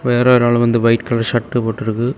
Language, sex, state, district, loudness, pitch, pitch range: Tamil, male, Tamil Nadu, Kanyakumari, -15 LUFS, 120 Hz, 115-120 Hz